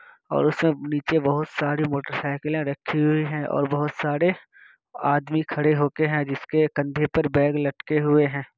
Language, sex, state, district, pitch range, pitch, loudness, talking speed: Hindi, male, Bihar, Kishanganj, 145-155 Hz, 150 Hz, -23 LUFS, 160 wpm